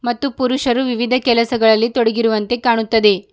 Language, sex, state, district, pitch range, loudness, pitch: Kannada, female, Karnataka, Bidar, 225-250 Hz, -16 LUFS, 235 Hz